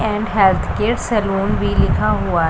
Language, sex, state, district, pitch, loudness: Hindi, female, Punjab, Pathankot, 190 Hz, -17 LUFS